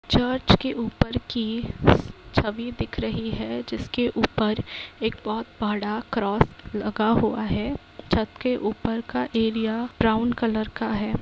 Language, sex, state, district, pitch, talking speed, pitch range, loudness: Hindi, female, Bihar, Muzaffarpur, 220 Hz, 140 wpm, 210-230 Hz, -25 LUFS